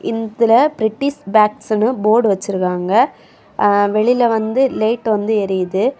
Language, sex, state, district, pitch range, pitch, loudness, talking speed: Tamil, female, Tamil Nadu, Kanyakumari, 205-230 Hz, 220 Hz, -16 LUFS, 110 wpm